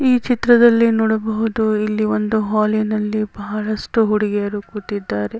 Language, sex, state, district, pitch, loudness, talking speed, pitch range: Kannada, female, Karnataka, Bijapur, 215 Hz, -18 LUFS, 110 wpm, 210-225 Hz